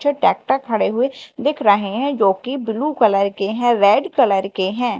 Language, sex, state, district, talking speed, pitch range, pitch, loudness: Hindi, female, Madhya Pradesh, Dhar, 190 wpm, 200-270 Hz, 230 Hz, -18 LUFS